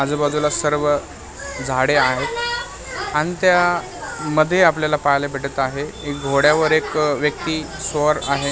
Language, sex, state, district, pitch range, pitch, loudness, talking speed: Marathi, male, Maharashtra, Mumbai Suburban, 145-155 Hz, 150 Hz, -19 LUFS, 125 wpm